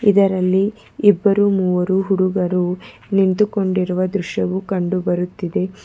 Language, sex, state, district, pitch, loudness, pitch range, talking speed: Kannada, female, Karnataka, Bangalore, 190 Hz, -18 LUFS, 185-200 Hz, 80 wpm